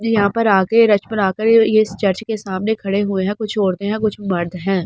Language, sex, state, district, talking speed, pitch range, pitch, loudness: Hindi, female, Delhi, New Delhi, 260 wpm, 195-220 Hz, 205 Hz, -17 LUFS